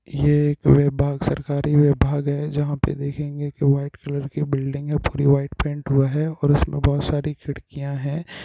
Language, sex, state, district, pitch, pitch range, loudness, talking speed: Hindi, male, Uttarakhand, Tehri Garhwal, 145 Hz, 140-145 Hz, -21 LUFS, 175 wpm